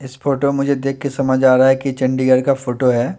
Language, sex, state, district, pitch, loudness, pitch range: Hindi, male, Chandigarh, Chandigarh, 130 Hz, -16 LUFS, 130-140 Hz